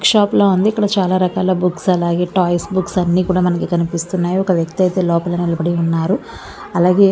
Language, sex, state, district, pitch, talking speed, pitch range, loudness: Telugu, female, Andhra Pradesh, Visakhapatnam, 180 Hz, 285 wpm, 175-190 Hz, -16 LUFS